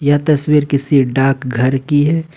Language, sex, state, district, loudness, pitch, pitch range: Hindi, male, Jharkhand, Ranchi, -14 LUFS, 145 Hz, 135-150 Hz